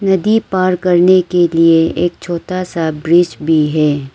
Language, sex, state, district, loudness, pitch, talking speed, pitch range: Hindi, female, Arunachal Pradesh, Lower Dibang Valley, -13 LUFS, 175 Hz, 160 wpm, 165-185 Hz